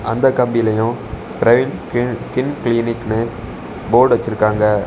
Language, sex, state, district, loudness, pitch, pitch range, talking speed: Tamil, male, Tamil Nadu, Kanyakumari, -17 LUFS, 115 Hz, 110-120 Hz, 100 wpm